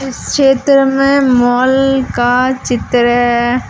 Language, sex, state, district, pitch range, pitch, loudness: Hindi, female, Jharkhand, Deoghar, 245-270 Hz, 260 Hz, -12 LUFS